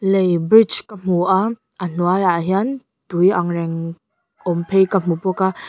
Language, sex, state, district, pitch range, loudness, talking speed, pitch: Mizo, female, Mizoram, Aizawl, 175-195 Hz, -18 LUFS, 180 wpm, 185 Hz